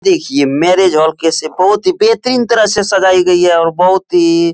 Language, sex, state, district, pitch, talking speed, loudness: Hindi, male, Uttar Pradesh, Etah, 195 Hz, 210 wpm, -11 LUFS